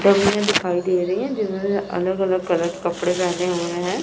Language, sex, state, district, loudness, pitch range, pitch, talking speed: Hindi, female, Chandigarh, Chandigarh, -21 LUFS, 175-200 Hz, 180 Hz, 210 wpm